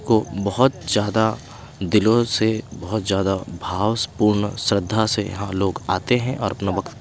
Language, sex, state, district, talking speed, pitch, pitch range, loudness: Hindi, male, Himachal Pradesh, Shimla, 145 wpm, 105 Hz, 95-110 Hz, -21 LUFS